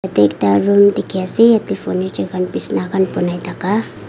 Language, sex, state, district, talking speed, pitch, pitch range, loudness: Nagamese, female, Nagaland, Kohima, 175 wpm, 185 Hz, 175-200 Hz, -16 LUFS